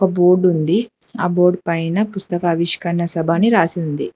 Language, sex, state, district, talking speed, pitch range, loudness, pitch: Telugu, female, Telangana, Hyderabad, 145 wpm, 170-190 Hz, -16 LUFS, 175 Hz